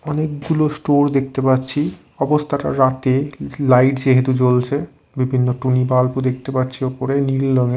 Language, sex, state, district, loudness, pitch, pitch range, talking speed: Bengali, male, Odisha, Khordha, -18 LUFS, 135 Hz, 130-145 Hz, 130 wpm